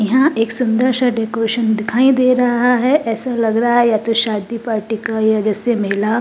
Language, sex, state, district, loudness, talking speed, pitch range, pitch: Hindi, female, Uttar Pradesh, Jalaun, -15 LUFS, 210 wpm, 220-245 Hz, 230 Hz